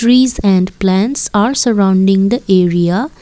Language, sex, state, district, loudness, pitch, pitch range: English, female, Assam, Kamrup Metropolitan, -12 LUFS, 195 Hz, 190-240 Hz